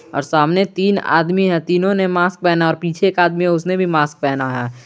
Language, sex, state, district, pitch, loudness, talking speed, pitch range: Hindi, male, Jharkhand, Garhwa, 175 Hz, -16 LUFS, 220 wpm, 150-185 Hz